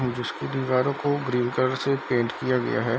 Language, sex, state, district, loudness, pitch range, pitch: Hindi, male, Bihar, Darbhanga, -25 LUFS, 125-135 Hz, 130 Hz